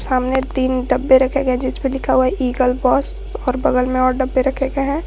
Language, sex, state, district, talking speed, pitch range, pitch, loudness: Hindi, female, Jharkhand, Garhwa, 225 wpm, 255-270 Hz, 260 Hz, -17 LUFS